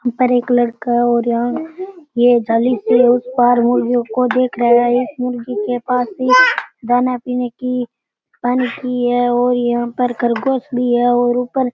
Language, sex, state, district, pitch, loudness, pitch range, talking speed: Rajasthani, male, Rajasthan, Churu, 245 Hz, -16 LUFS, 240-250 Hz, 185 wpm